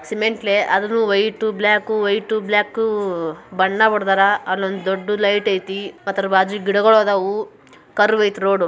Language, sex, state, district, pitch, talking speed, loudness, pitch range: Kannada, female, Karnataka, Bijapur, 205 Hz, 140 wpm, -18 LUFS, 195-215 Hz